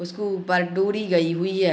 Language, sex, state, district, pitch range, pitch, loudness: Hindi, female, Bihar, Gopalganj, 175-195 Hz, 185 Hz, -23 LUFS